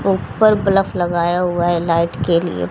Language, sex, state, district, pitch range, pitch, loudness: Hindi, female, Haryana, Jhajjar, 170-195 Hz, 175 Hz, -17 LUFS